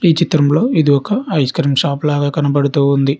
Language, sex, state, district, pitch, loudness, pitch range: Telugu, male, Telangana, Hyderabad, 145 Hz, -14 LUFS, 140-160 Hz